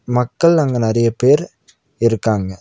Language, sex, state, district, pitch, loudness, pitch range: Tamil, male, Tamil Nadu, Nilgiris, 120 Hz, -16 LUFS, 115-140 Hz